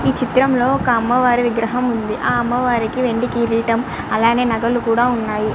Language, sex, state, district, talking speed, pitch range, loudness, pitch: Telugu, male, Andhra Pradesh, Srikakulam, 175 wpm, 230-245 Hz, -17 LUFS, 240 Hz